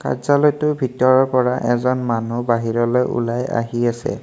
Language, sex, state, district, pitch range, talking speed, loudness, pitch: Assamese, male, Assam, Kamrup Metropolitan, 120-130 Hz, 130 wpm, -18 LUFS, 125 Hz